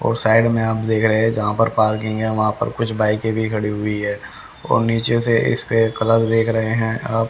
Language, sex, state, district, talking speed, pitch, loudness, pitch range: Hindi, male, Haryana, Rohtak, 240 wpm, 110 Hz, -18 LUFS, 110-115 Hz